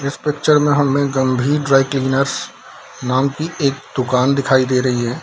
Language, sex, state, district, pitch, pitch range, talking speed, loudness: Hindi, male, Bihar, Darbhanga, 135 Hz, 130-140 Hz, 170 wpm, -17 LUFS